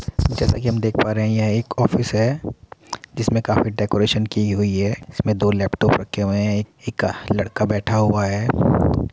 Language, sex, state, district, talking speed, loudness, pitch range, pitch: Hindi, male, Uttar Pradesh, Muzaffarnagar, 190 wpm, -20 LUFS, 105-110 Hz, 105 Hz